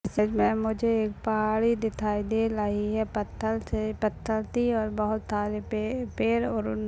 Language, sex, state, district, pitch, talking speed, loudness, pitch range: Hindi, male, Maharashtra, Solapur, 215 Hz, 155 wpm, -28 LUFS, 210-220 Hz